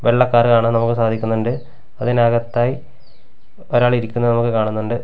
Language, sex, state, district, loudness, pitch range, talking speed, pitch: Malayalam, male, Kerala, Kasaragod, -17 LUFS, 115-120 Hz, 120 wpm, 120 Hz